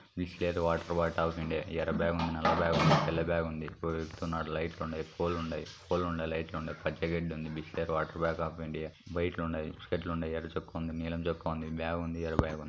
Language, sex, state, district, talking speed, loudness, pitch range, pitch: Telugu, male, Andhra Pradesh, Krishna, 130 wpm, -34 LUFS, 80-85 Hz, 80 Hz